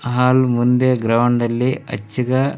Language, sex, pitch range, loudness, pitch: Kannada, male, 120-130 Hz, -17 LUFS, 125 Hz